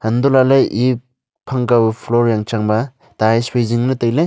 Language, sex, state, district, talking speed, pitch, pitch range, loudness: Wancho, male, Arunachal Pradesh, Longding, 170 wpm, 120 Hz, 115-130 Hz, -16 LUFS